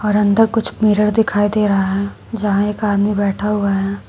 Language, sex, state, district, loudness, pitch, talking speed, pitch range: Hindi, female, Uttar Pradesh, Shamli, -16 LUFS, 205 Hz, 205 wpm, 200-210 Hz